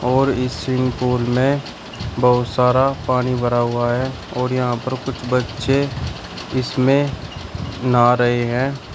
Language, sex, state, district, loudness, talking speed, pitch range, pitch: Hindi, male, Uttar Pradesh, Shamli, -19 LUFS, 135 wpm, 120-130 Hz, 125 Hz